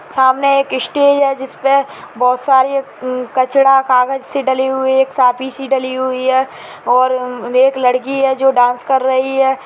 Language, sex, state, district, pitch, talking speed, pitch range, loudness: Hindi, female, Chhattisgarh, Raigarh, 265 Hz, 180 wpm, 255-270 Hz, -14 LUFS